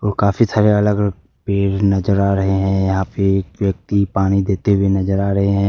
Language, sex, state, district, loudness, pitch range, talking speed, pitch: Hindi, male, Jharkhand, Ranchi, -17 LUFS, 95-100 Hz, 210 wpm, 100 Hz